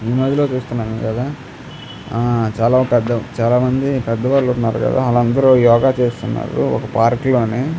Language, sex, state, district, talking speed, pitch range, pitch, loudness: Telugu, male, Andhra Pradesh, Krishna, 75 wpm, 115-130 Hz, 120 Hz, -16 LUFS